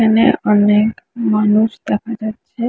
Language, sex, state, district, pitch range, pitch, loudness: Bengali, female, West Bengal, Kolkata, 210-225 Hz, 220 Hz, -15 LUFS